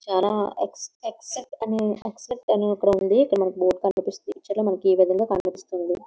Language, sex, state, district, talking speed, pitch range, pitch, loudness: Telugu, female, Andhra Pradesh, Visakhapatnam, 170 wpm, 190-225 Hz, 200 Hz, -24 LUFS